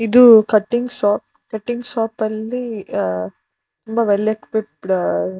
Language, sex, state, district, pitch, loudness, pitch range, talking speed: Kannada, female, Karnataka, Shimoga, 215 Hz, -18 LUFS, 190-230 Hz, 80 wpm